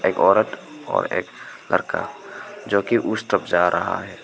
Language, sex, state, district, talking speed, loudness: Hindi, male, Arunachal Pradesh, Papum Pare, 155 wpm, -21 LUFS